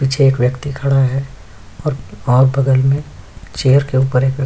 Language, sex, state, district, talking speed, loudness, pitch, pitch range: Hindi, male, Bihar, Kishanganj, 190 wpm, -15 LUFS, 135 Hz, 130-135 Hz